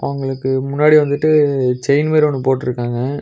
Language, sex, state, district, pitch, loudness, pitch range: Tamil, male, Tamil Nadu, Nilgiris, 140 Hz, -15 LUFS, 130-150 Hz